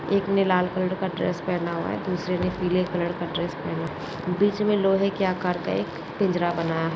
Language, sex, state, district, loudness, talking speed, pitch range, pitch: Hindi, female, Rajasthan, Nagaur, -25 LUFS, 240 wpm, 175-190 Hz, 180 Hz